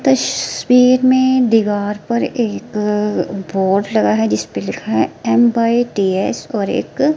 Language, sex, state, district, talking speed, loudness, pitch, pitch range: Hindi, female, Himachal Pradesh, Shimla, 160 wpm, -16 LUFS, 215 Hz, 195-250 Hz